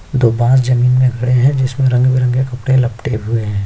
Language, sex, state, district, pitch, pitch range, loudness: Hindi, male, Chhattisgarh, Sukma, 125 Hz, 120-130 Hz, -14 LUFS